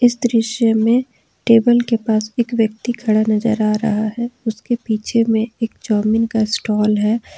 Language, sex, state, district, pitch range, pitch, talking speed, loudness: Hindi, female, Jharkhand, Ranchi, 215-235 Hz, 225 Hz, 170 wpm, -17 LUFS